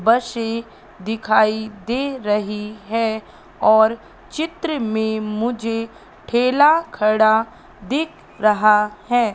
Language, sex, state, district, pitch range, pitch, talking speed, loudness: Hindi, female, Madhya Pradesh, Katni, 215-240 Hz, 225 Hz, 90 wpm, -19 LUFS